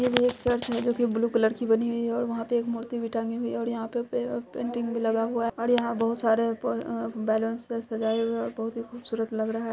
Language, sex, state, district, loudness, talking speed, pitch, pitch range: Hindi, female, Bihar, Araria, -28 LUFS, 295 wpm, 230 Hz, 225-235 Hz